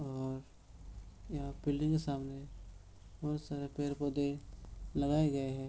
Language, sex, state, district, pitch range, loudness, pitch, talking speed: Hindi, male, Bihar, Supaul, 100-145 Hz, -37 LUFS, 140 Hz, 125 wpm